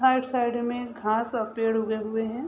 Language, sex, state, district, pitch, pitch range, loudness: Hindi, female, Uttar Pradesh, Gorakhpur, 235 Hz, 220-245 Hz, -27 LUFS